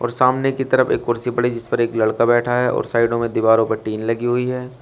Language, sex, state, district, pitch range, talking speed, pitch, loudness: Hindi, male, Uttar Pradesh, Shamli, 115-125 Hz, 275 wpm, 120 Hz, -18 LUFS